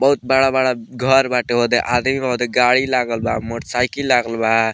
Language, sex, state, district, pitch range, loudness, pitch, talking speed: Bhojpuri, male, Bihar, Muzaffarpur, 120-130 Hz, -17 LUFS, 125 Hz, 165 wpm